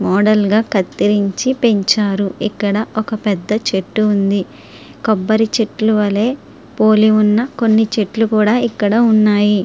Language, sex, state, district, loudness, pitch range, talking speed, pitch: Telugu, female, Andhra Pradesh, Srikakulam, -15 LUFS, 205-220 Hz, 110 wpm, 215 Hz